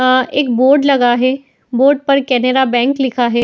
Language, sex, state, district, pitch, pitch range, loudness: Hindi, female, Uttar Pradesh, Etah, 260 Hz, 250-275 Hz, -13 LUFS